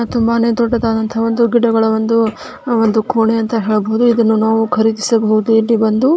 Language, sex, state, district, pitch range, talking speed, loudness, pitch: Kannada, female, Karnataka, Dharwad, 220-235 Hz, 145 wpm, -14 LUFS, 225 Hz